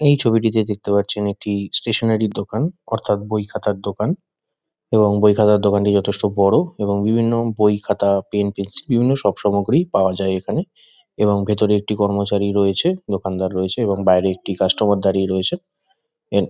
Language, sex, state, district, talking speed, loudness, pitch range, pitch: Bengali, male, West Bengal, Kolkata, 145 wpm, -18 LUFS, 100-115 Hz, 105 Hz